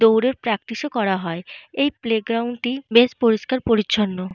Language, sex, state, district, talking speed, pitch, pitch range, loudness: Bengali, female, Jharkhand, Jamtara, 150 wpm, 230 Hz, 210-245 Hz, -20 LUFS